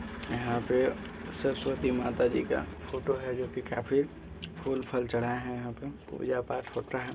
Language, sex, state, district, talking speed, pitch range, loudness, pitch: Hindi, male, Chhattisgarh, Balrampur, 175 wpm, 120-130 Hz, -32 LUFS, 125 Hz